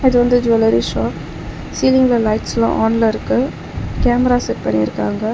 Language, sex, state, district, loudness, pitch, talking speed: Tamil, female, Tamil Nadu, Chennai, -16 LUFS, 225 Hz, 125 wpm